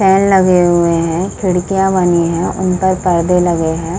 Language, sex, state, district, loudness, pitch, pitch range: Hindi, female, Uttar Pradesh, Muzaffarnagar, -13 LUFS, 180 Hz, 170-190 Hz